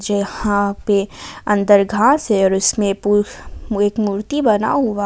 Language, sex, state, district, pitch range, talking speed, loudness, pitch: Hindi, female, Jharkhand, Ranchi, 200-215 Hz, 140 wpm, -16 LUFS, 205 Hz